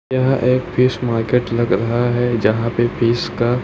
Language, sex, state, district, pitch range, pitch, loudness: Hindi, male, Chhattisgarh, Raipur, 120-125 Hz, 120 Hz, -17 LUFS